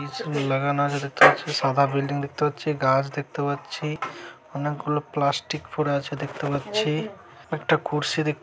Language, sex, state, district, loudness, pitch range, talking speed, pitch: Bengali, male, West Bengal, Malda, -24 LUFS, 140-150 Hz, 140 wpm, 145 Hz